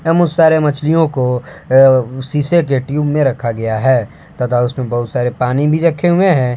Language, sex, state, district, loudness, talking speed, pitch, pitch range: Hindi, male, Jharkhand, Palamu, -14 LUFS, 200 wpm, 135 Hz, 125-160 Hz